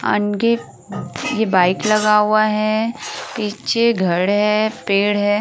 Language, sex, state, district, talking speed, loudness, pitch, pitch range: Hindi, female, Uttar Pradesh, Varanasi, 120 wpm, -17 LUFS, 215 Hz, 205-220 Hz